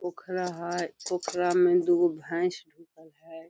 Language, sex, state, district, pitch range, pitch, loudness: Magahi, female, Bihar, Gaya, 165-180 Hz, 175 Hz, -27 LUFS